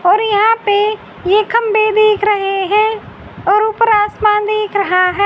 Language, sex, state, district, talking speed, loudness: Hindi, female, Haryana, Rohtak, 160 wpm, -13 LUFS